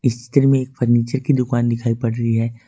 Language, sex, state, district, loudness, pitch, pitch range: Hindi, male, Jharkhand, Ranchi, -18 LUFS, 120 Hz, 115-130 Hz